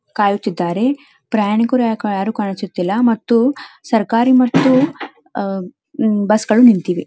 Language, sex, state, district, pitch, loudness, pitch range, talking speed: Kannada, female, Karnataka, Dharwad, 225 Hz, -16 LUFS, 205-250 Hz, 75 wpm